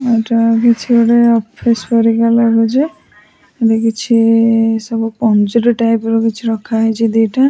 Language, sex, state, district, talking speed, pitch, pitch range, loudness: Odia, female, Odisha, Sambalpur, 55 wpm, 230 Hz, 225-235 Hz, -13 LUFS